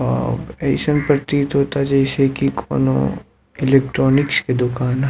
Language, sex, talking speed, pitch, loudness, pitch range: Bhojpuri, male, 105 wpm, 135 Hz, -18 LUFS, 125-140 Hz